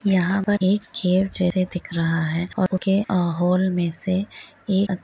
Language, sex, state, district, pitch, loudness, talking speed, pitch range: Hindi, female, Jharkhand, Jamtara, 185 Hz, -22 LUFS, 145 wpm, 180-195 Hz